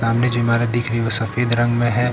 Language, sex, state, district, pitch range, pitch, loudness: Hindi, male, Uttar Pradesh, Lucknow, 115-120 Hz, 120 Hz, -17 LUFS